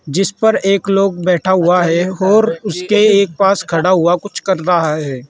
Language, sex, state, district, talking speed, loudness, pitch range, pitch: Hindi, male, Uttar Pradesh, Saharanpur, 190 wpm, -14 LUFS, 175-200 Hz, 185 Hz